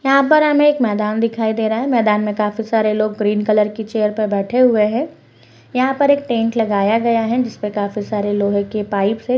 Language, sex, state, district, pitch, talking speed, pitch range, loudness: Hindi, female, West Bengal, Purulia, 220 Hz, 235 wpm, 210-245 Hz, -17 LUFS